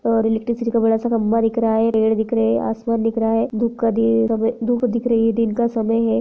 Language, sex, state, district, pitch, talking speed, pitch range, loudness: Hindi, female, Jharkhand, Jamtara, 225 Hz, 230 wpm, 225-230 Hz, -19 LUFS